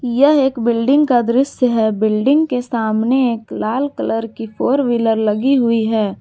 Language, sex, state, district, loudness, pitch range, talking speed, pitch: Hindi, female, Jharkhand, Garhwa, -16 LUFS, 225-265 Hz, 175 wpm, 240 Hz